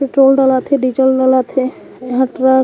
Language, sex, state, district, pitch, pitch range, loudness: Chhattisgarhi, female, Chhattisgarh, Korba, 260 Hz, 260-270 Hz, -13 LUFS